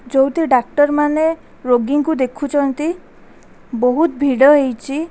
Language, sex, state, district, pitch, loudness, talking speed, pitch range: Odia, female, Odisha, Khordha, 285 Hz, -16 LUFS, 80 wpm, 260-305 Hz